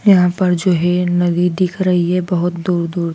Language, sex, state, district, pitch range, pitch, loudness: Hindi, female, Madhya Pradesh, Dhar, 175-180 Hz, 180 Hz, -16 LUFS